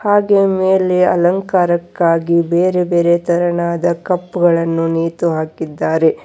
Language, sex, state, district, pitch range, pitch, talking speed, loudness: Kannada, female, Karnataka, Bangalore, 170-180 Hz, 175 Hz, 95 wpm, -15 LUFS